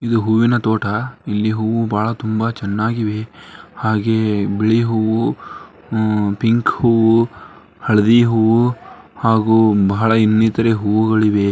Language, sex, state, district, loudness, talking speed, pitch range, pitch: Kannada, male, Karnataka, Dharwad, -16 LUFS, 105 wpm, 105-115 Hz, 110 Hz